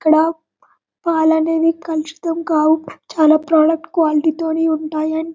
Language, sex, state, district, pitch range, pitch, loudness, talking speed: Telugu, male, Telangana, Karimnagar, 310-325 Hz, 320 Hz, -16 LUFS, 135 wpm